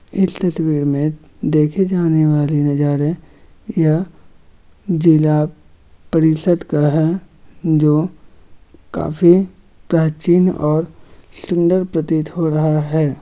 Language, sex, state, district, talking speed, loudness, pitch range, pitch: Magahi, male, Bihar, Gaya, 95 wpm, -16 LUFS, 150-170 Hz, 155 Hz